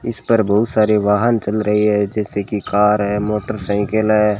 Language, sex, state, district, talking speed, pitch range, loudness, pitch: Hindi, male, Rajasthan, Bikaner, 190 wpm, 105-110 Hz, -17 LUFS, 105 Hz